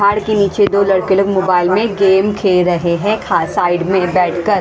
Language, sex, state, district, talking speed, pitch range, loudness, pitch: Hindi, female, Haryana, Rohtak, 210 wpm, 180-205 Hz, -14 LUFS, 195 Hz